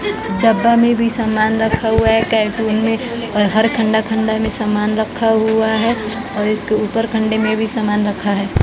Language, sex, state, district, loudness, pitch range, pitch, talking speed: Hindi, female, Bihar, West Champaran, -16 LUFS, 215-225 Hz, 220 Hz, 190 wpm